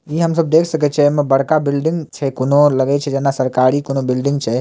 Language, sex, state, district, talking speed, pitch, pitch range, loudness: Maithili, male, Bihar, Samastipur, 235 wpm, 140 Hz, 135-150 Hz, -16 LUFS